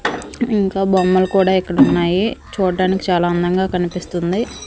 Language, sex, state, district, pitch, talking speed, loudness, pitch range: Telugu, female, Andhra Pradesh, Manyam, 185 Hz, 105 wpm, -17 LUFS, 180-195 Hz